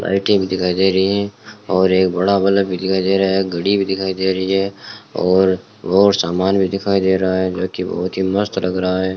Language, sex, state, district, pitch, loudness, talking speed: Hindi, male, Rajasthan, Bikaner, 95 Hz, -17 LUFS, 230 wpm